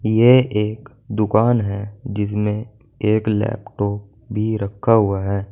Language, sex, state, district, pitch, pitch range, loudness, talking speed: Hindi, male, Uttar Pradesh, Saharanpur, 105 Hz, 105-115 Hz, -19 LUFS, 120 wpm